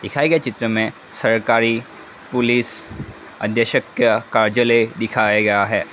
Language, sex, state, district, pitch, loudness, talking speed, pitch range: Hindi, male, Assam, Kamrup Metropolitan, 115 Hz, -18 LUFS, 120 wpm, 110-120 Hz